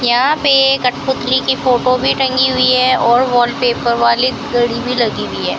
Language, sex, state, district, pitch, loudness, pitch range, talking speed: Hindi, female, Rajasthan, Bikaner, 250 Hz, -13 LUFS, 240-260 Hz, 185 wpm